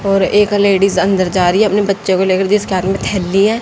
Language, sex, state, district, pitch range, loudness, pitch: Hindi, female, Haryana, Jhajjar, 190-205 Hz, -13 LUFS, 195 Hz